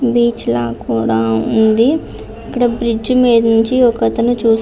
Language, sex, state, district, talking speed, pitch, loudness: Telugu, female, Andhra Pradesh, Visakhapatnam, 155 wpm, 230 Hz, -14 LUFS